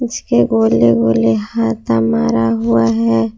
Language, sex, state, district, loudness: Hindi, female, Jharkhand, Palamu, -14 LUFS